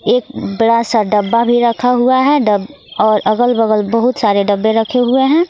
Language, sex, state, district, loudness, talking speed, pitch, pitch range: Hindi, female, Jharkhand, Garhwa, -13 LUFS, 195 wpm, 230 Hz, 215-250 Hz